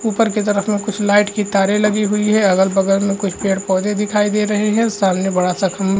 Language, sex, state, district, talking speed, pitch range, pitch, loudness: Hindi, male, Chhattisgarh, Raigarh, 240 wpm, 195-210 Hz, 205 Hz, -16 LUFS